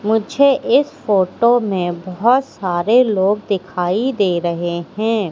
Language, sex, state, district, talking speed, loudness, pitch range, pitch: Hindi, female, Madhya Pradesh, Katni, 125 wpm, -17 LUFS, 180-240 Hz, 205 Hz